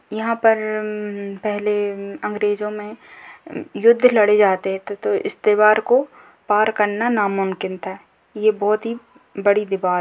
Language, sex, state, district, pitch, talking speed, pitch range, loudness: Hindi, female, Rajasthan, Nagaur, 210 Hz, 130 wpm, 205-225 Hz, -19 LUFS